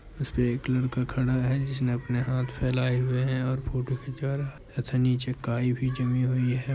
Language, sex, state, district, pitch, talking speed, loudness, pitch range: Hindi, male, Uttar Pradesh, Muzaffarnagar, 130 Hz, 195 wpm, -28 LUFS, 125-130 Hz